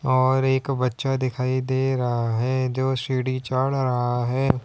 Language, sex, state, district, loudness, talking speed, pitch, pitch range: Hindi, male, Uttar Pradesh, Lalitpur, -23 LUFS, 155 wpm, 130 Hz, 125-130 Hz